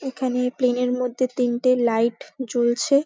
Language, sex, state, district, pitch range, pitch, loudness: Bengali, female, West Bengal, Paschim Medinipur, 245-260 Hz, 250 Hz, -22 LUFS